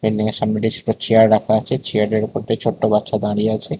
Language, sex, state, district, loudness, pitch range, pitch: Bengali, male, Tripura, West Tripura, -18 LUFS, 105-110 Hz, 110 Hz